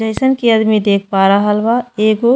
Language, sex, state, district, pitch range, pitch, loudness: Bhojpuri, female, Uttar Pradesh, Ghazipur, 210-235 Hz, 220 Hz, -13 LUFS